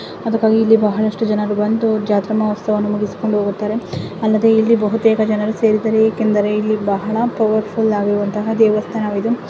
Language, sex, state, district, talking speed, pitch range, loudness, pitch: Kannada, female, Karnataka, Mysore, 135 wpm, 210-220 Hz, -16 LUFS, 215 Hz